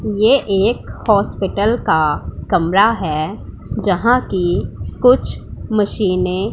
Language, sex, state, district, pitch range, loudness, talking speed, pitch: Hindi, female, Punjab, Pathankot, 180-220 Hz, -16 LUFS, 100 wpm, 195 Hz